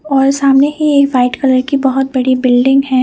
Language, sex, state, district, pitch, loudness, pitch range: Hindi, female, Punjab, Fazilka, 270 Hz, -11 LUFS, 255-275 Hz